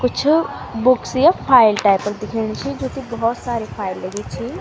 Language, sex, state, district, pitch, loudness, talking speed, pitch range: Garhwali, female, Uttarakhand, Tehri Garhwal, 235 Hz, -18 LUFS, 195 wpm, 210-270 Hz